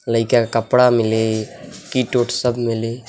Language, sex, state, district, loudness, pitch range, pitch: Bhojpuri, male, Uttar Pradesh, Deoria, -18 LUFS, 115-125 Hz, 120 Hz